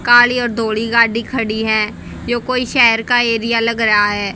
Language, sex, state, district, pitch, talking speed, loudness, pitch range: Hindi, female, Haryana, Jhajjar, 230 Hz, 195 wpm, -14 LUFS, 220-240 Hz